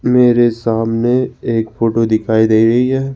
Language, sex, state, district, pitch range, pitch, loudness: Hindi, male, Rajasthan, Jaipur, 115-125 Hz, 115 Hz, -14 LUFS